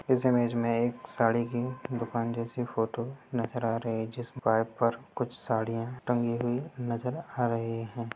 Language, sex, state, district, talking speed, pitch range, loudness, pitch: Hindi, male, Bihar, Gaya, 155 wpm, 115-125 Hz, -31 LUFS, 120 Hz